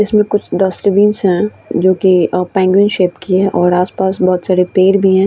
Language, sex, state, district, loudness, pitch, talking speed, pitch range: Hindi, female, Bihar, Vaishali, -13 LUFS, 190 Hz, 195 wpm, 185-200 Hz